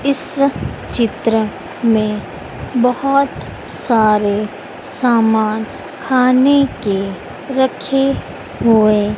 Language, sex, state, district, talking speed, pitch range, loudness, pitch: Hindi, female, Madhya Pradesh, Dhar, 65 wpm, 215-270 Hz, -16 LUFS, 230 Hz